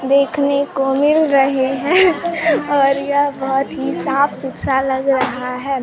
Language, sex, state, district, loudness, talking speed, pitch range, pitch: Hindi, female, Bihar, Kaimur, -16 LUFS, 145 wpm, 270-285 Hz, 275 Hz